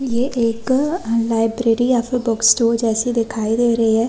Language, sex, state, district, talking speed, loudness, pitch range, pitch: Hindi, female, Chhattisgarh, Raigarh, 175 wpm, -17 LUFS, 225-245 Hz, 230 Hz